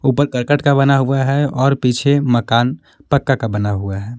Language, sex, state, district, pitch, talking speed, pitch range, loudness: Hindi, male, Jharkhand, Palamu, 135 Hz, 200 wpm, 120-140 Hz, -16 LUFS